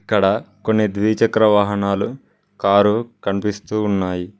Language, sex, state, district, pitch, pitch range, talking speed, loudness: Telugu, male, Telangana, Mahabubabad, 105 Hz, 100-110 Hz, 95 wpm, -18 LUFS